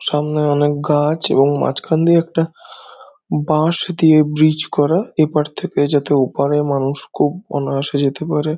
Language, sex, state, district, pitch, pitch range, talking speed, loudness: Bengali, male, West Bengal, Dakshin Dinajpur, 150 Hz, 145-160 Hz, 145 wpm, -16 LUFS